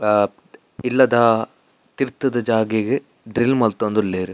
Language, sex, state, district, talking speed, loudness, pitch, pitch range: Tulu, male, Karnataka, Dakshina Kannada, 85 wpm, -19 LUFS, 110 Hz, 105-120 Hz